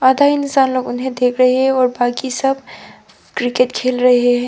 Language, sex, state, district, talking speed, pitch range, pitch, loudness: Hindi, female, Arunachal Pradesh, Papum Pare, 175 wpm, 245-265 Hz, 255 Hz, -15 LUFS